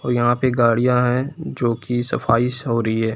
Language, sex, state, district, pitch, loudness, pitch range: Hindi, male, Jharkhand, Palamu, 120 Hz, -19 LUFS, 115-125 Hz